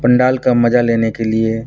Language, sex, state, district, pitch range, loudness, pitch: Hindi, male, Bihar, Purnia, 115-125 Hz, -14 LUFS, 115 Hz